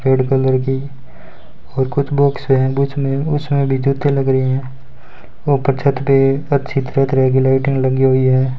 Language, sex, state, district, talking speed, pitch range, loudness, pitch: Hindi, male, Rajasthan, Bikaner, 160 wpm, 130-140 Hz, -16 LUFS, 135 Hz